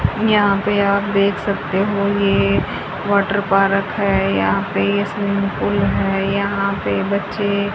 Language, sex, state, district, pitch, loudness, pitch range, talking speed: Hindi, female, Haryana, Charkhi Dadri, 200 Hz, -18 LUFS, 195-200 Hz, 145 wpm